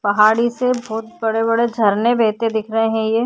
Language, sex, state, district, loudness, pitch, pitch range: Hindi, female, Uttar Pradesh, Hamirpur, -17 LUFS, 225 Hz, 220-235 Hz